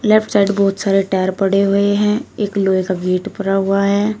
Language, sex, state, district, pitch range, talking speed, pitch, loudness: Hindi, female, Uttar Pradesh, Shamli, 195-205 Hz, 215 wpm, 200 Hz, -16 LUFS